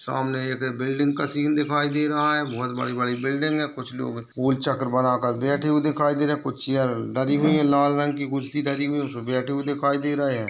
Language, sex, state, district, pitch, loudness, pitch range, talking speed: Hindi, male, Bihar, Purnia, 140 Hz, -23 LUFS, 130-145 Hz, 250 wpm